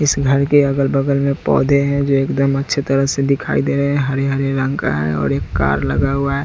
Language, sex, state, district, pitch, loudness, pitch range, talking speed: Hindi, male, Bihar, West Champaran, 135 Hz, -16 LUFS, 135-140 Hz, 240 wpm